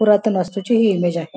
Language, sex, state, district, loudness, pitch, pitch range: Marathi, female, Maharashtra, Nagpur, -18 LUFS, 200 Hz, 180-215 Hz